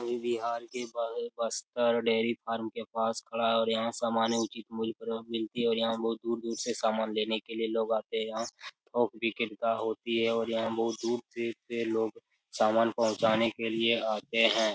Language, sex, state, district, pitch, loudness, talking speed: Hindi, male, Bihar, Jamui, 115 Hz, -31 LUFS, 205 wpm